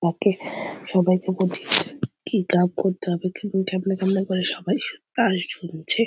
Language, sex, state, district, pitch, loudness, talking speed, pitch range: Bengali, female, West Bengal, Purulia, 185 Hz, -23 LUFS, 100 wpm, 180-195 Hz